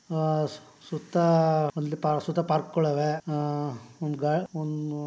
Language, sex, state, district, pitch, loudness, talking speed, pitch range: Kannada, male, Karnataka, Mysore, 155 Hz, -27 LUFS, 130 wpm, 150-160 Hz